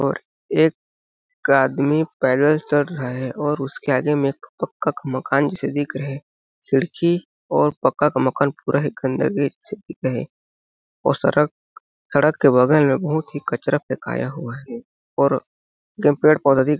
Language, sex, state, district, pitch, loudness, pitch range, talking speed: Hindi, male, Chhattisgarh, Balrampur, 145 Hz, -20 LUFS, 135-150 Hz, 145 wpm